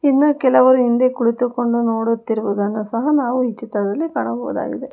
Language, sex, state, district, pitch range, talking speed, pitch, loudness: Kannada, female, Karnataka, Bangalore, 225-255 Hz, 120 wpm, 240 Hz, -18 LUFS